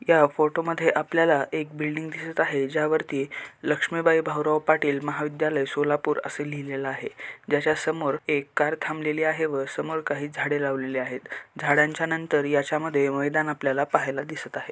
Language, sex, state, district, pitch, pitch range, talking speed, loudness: Marathi, male, Maharashtra, Solapur, 150 Hz, 145-155 Hz, 155 wpm, -25 LUFS